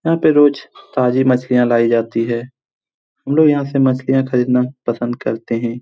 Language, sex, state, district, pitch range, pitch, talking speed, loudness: Hindi, male, Bihar, Jamui, 120-135 Hz, 125 Hz, 175 wpm, -16 LUFS